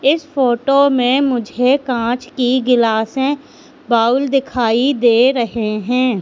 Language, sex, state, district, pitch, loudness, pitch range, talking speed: Hindi, female, Madhya Pradesh, Katni, 250 Hz, -15 LUFS, 235-275 Hz, 115 wpm